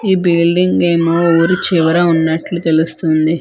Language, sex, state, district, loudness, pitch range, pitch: Telugu, female, Andhra Pradesh, Manyam, -13 LUFS, 160-175 Hz, 170 Hz